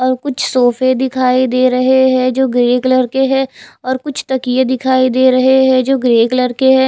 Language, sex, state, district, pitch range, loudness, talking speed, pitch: Hindi, female, Chhattisgarh, Raipur, 255-265 Hz, -13 LUFS, 210 wpm, 255 Hz